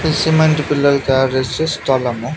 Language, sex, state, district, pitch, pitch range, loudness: Telugu, male, Telangana, Mahabubabad, 140 Hz, 130-155 Hz, -15 LUFS